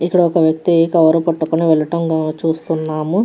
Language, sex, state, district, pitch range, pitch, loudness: Telugu, female, Andhra Pradesh, Krishna, 160-170 Hz, 165 Hz, -15 LUFS